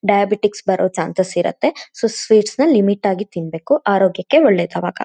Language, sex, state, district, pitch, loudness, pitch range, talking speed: Kannada, female, Karnataka, Shimoga, 200 Hz, -17 LUFS, 190-215 Hz, 95 wpm